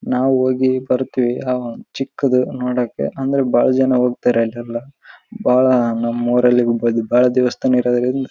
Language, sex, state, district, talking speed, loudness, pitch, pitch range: Kannada, male, Karnataka, Raichur, 125 wpm, -17 LUFS, 125 Hz, 120-130 Hz